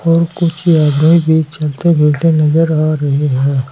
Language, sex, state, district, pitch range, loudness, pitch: Hindi, male, Uttar Pradesh, Saharanpur, 150-165 Hz, -12 LUFS, 155 Hz